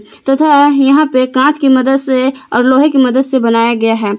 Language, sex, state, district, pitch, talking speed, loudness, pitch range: Hindi, female, Jharkhand, Palamu, 265 Hz, 215 wpm, -10 LUFS, 250-275 Hz